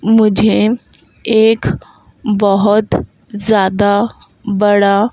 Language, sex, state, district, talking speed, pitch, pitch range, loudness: Hindi, female, Madhya Pradesh, Dhar, 60 wpm, 210 Hz, 205-220 Hz, -13 LUFS